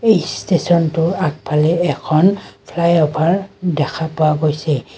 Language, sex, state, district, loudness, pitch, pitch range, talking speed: Assamese, female, Assam, Kamrup Metropolitan, -16 LUFS, 165 Hz, 155-175 Hz, 95 wpm